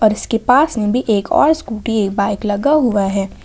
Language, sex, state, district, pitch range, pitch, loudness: Hindi, female, Jharkhand, Ranchi, 205-250 Hz, 220 Hz, -16 LUFS